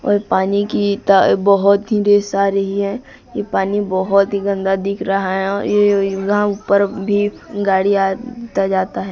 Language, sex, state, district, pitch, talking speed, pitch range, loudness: Hindi, female, Odisha, Sambalpur, 200 Hz, 175 wpm, 195-205 Hz, -16 LUFS